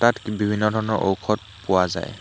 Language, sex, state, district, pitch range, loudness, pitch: Assamese, male, Assam, Hailakandi, 95-105 Hz, -23 LUFS, 105 Hz